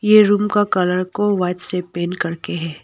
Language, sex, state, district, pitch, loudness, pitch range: Hindi, female, Arunachal Pradesh, Longding, 180 Hz, -18 LUFS, 175-205 Hz